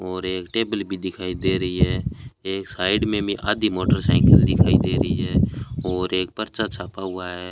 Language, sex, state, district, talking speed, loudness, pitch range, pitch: Hindi, male, Rajasthan, Bikaner, 190 wpm, -22 LUFS, 90-105 Hz, 95 Hz